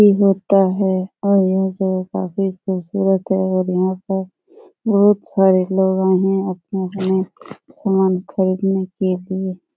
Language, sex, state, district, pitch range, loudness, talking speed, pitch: Hindi, female, Bihar, Supaul, 185-195 Hz, -18 LUFS, 140 wpm, 190 Hz